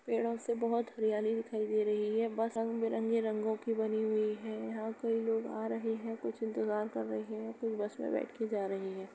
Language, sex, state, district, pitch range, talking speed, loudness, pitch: Hindi, female, Uttar Pradesh, Jalaun, 215-225 Hz, 230 wpm, -35 LUFS, 220 Hz